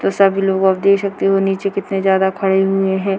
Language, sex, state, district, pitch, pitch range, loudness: Hindi, female, Bihar, Purnia, 195 Hz, 190-195 Hz, -16 LUFS